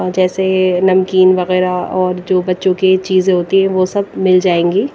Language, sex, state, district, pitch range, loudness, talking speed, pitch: Hindi, female, Himachal Pradesh, Shimla, 185-190 Hz, -13 LUFS, 170 wpm, 185 Hz